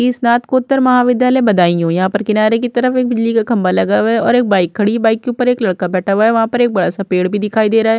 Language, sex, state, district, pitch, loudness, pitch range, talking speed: Hindi, female, Uttar Pradesh, Budaun, 225 Hz, -13 LUFS, 200-245 Hz, 300 wpm